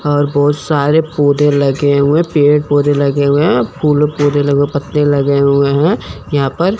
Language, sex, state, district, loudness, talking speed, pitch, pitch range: Hindi, male, Chandigarh, Chandigarh, -12 LUFS, 195 wpm, 145 Hz, 140-150 Hz